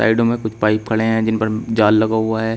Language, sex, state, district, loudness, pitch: Hindi, male, Uttar Pradesh, Shamli, -17 LUFS, 110 Hz